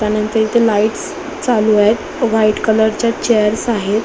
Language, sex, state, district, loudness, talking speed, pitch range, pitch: Marathi, female, Maharashtra, Solapur, -15 LUFS, 120 wpm, 215-235 Hz, 220 Hz